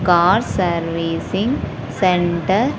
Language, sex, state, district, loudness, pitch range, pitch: Telugu, female, Andhra Pradesh, Sri Satya Sai, -18 LUFS, 165-185 Hz, 175 Hz